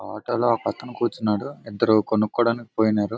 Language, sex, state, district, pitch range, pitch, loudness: Telugu, male, Andhra Pradesh, Visakhapatnam, 105-115 Hz, 110 Hz, -23 LUFS